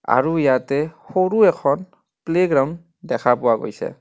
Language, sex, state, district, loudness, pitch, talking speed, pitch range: Assamese, male, Assam, Kamrup Metropolitan, -19 LUFS, 160 Hz, 120 wpm, 135-180 Hz